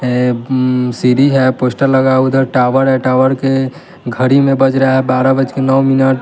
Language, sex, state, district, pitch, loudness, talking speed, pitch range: Hindi, male, Bihar, West Champaran, 130 Hz, -12 LUFS, 210 wpm, 130-135 Hz